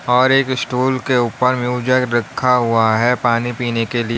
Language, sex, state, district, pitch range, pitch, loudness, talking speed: Hindi, male, Uttar Pradesh, Lalitpur, 120-130 Hz, 125 Hz, -16 LUFS, 185 wpm